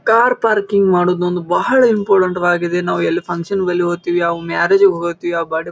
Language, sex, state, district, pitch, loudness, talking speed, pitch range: Kannada, male, Karnataka, Bijapur, 180 Hz, -15 LUFS, 145 wpm, 175-200 Hz